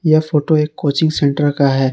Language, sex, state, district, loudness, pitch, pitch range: Hindi, male, Jharkhand, Palamu, -15 LUFS, 150 Hz, 140-155 Hz